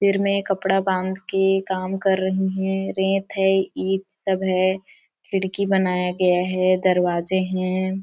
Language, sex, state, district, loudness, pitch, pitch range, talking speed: Hindi, female, Chhattisgarh, Sarguja, -22 LUFS, 190 Hz, 185-195 Hz, 150 wpm